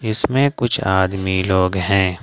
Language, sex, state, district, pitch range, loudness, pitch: Hindi, male, Jharkhand, Ranchi, 95-120 Hz, -18 LUFS, 95 Hz